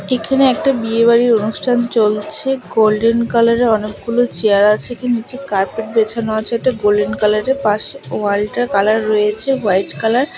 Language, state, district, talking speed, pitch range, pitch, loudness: Bengali, West Bengal, Alipurduar, 150 wpm, 210-245 Hz, 225 Hz, -15 LUFS